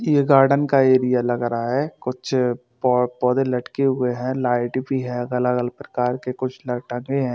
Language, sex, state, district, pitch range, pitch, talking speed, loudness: Hindi, male, Madhya Pradesh, Bhopal, 125-135 Hz, 125 Hz, 190 wpm, -21 LUFS